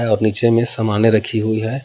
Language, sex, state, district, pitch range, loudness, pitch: Hindi, male, Jharkhand, Palamu, 110-115 Hz, -16 LUFS, 110 Hz